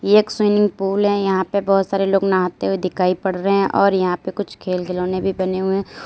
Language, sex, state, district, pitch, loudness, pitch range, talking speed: Hindi, female, Uttar Pradesh, Lalitpur, 195 Hz, -19 LUFS, 185-200 Hz, 250 wpm